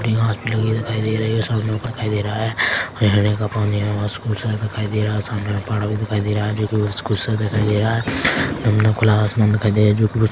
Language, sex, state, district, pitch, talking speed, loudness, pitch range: Hindi, male, Chhattisgarh, Korba, 105 Hz, 245 wpm, -19 LUFS, 105-110 Hz